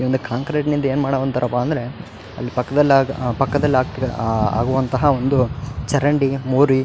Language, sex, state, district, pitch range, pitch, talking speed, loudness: Kannada, male, Karnataka, Raichur, 125-140 Hz, 130 Hz, 150 wpm, -19 LUFS